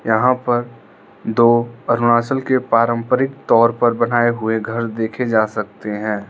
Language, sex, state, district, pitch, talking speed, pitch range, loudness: Hindi, male, Arunachal Pradesh, Lower Dibang Valley, 115 Hz, 145 wpm, 110-120 Hz, -17 LUFS